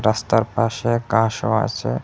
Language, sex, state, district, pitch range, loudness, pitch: Bengali, male, Assam, Hailakandi, 110-115 Hz, -20 LUFS, 115 Hz